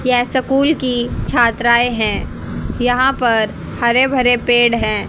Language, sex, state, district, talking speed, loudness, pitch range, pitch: Hindi, female, Haryana, Charkhi Dadri, 130 wpm, -15 LUFS, 235-255 Hz, 245 Hz